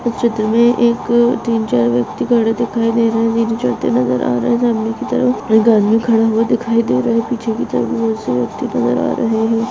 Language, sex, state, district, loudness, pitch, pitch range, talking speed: Hindi, female, Goa, North and South Goa, -15 LUFS, 230 Hz, 215-235 Hz, 185 wpm